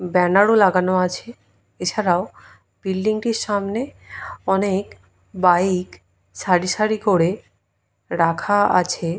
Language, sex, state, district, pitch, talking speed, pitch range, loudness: Bengali, female, West Bengal, Purulia, 180 Hz, 90 wpm, 165-200 Hz, -19 LUFS